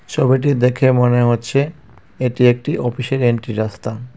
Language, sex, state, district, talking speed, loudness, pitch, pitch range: Bengali, male, West Bengal, Cooch Behar, 130 wpm, -17 LUFS, 125 Hz, 120-130 Hz